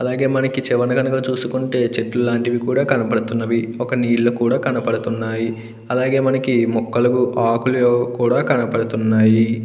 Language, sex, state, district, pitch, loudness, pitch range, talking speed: Telugu, male, Andhra Pradesh, Krishna, 120 Hz, -18 LUFS, 115-125 Hz, 100 wpm